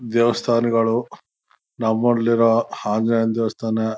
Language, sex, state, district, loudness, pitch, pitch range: Kannada, male, Karnataka, Chamarajanagar, -20 LUFS, 115 Hz, 110-115 Hz